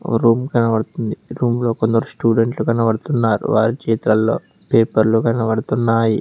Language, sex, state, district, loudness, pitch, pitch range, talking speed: Telugu, male, Telangana, Hyderabad, -17 LUFS, 115 Hz, 110-115 Hz, 115 wpm